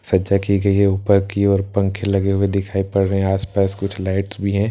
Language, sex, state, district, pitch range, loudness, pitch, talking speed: Hindi, male, Bihar, Katihar, 95-100 Hz, -18 LUFS, 100 Hz, 255 wpm